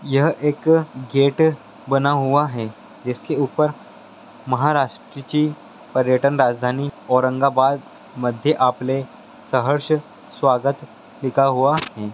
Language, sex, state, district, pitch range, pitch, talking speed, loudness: Hindi, male, Andhra Pradesh, Guntur, 130-145 Hz, 135 Hz, 95 wpm, -20 LUFS